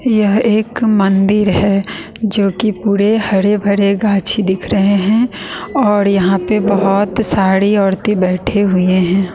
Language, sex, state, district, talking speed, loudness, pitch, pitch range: Hindi, female, Bihar, West Champaran, 135 wpm, -13 LUFS, 200 Hz, 195-210 Hz